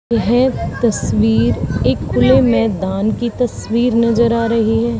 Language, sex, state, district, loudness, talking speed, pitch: Hindi, female, Haryana, Charkhi Dadri, -15 LUFS, 130 wpm, 220 Hz